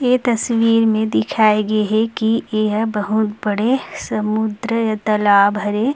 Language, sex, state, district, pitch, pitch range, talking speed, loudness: Chhattisgarhi, female, Chhattisgarh, Rajnandgaon, 215 Hz, 210-230 Hz, 140 wpm, -17 LUFS